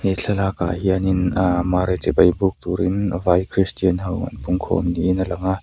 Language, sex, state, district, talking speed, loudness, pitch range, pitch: Mizo, male, Mizoram, Aizawl, 190 wpm, -20 LUFS, 90-95 Hz, 95 Hz